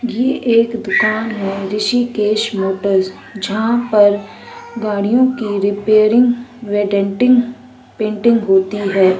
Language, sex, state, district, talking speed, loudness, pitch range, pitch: Hindi, female, Uttarakhand, Uttarkashi, 105 wpm, -15 LUFS, 200-240 Hz, 215 Hz